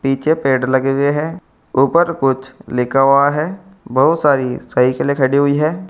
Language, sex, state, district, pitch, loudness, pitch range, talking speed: Hindi, male, Uttar Pradesh, Saharanpur, 140 Hz, -15 LUFS, 130-155 Hz, 160 wpm